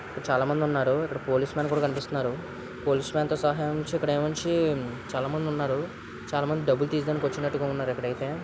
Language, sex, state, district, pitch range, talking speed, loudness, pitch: Telugu, male, Andhra Pradesh, Visakhapatnam, 130-150 Hz, 155 wpm, -28 LUFS, 145 Hz